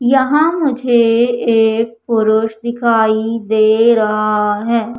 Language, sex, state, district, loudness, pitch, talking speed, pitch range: Hindi, female, Madhya Pradesh, Umaria, -14 LUFS, 230 Hz, 95 wpm, 220-235 Hz